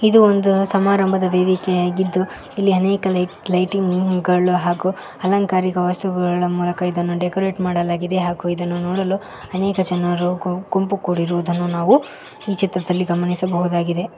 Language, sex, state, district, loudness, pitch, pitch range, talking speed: Kannada, female, Karnataka, Koppal, -19 LUFS, 180 Hz, 175-190 Hz, 105 wpm